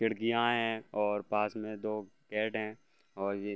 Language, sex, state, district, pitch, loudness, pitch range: Hindi, male, Uttar Pradesh, Varanasi, 110 Hz, -34 LUFS, 105-115 Hz